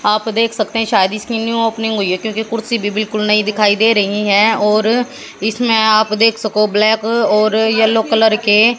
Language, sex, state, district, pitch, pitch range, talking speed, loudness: Hindi, female, Haryana, Jhajjar, 220 Hz, 210-225 Hz, 200 wpm, -14 LUFS